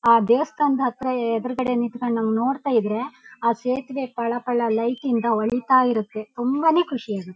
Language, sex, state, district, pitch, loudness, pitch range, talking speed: Kannada, female, Karnataka, Shimoga, 245 Hz, -22 LUFS, 230-260 Hz, 145 wpm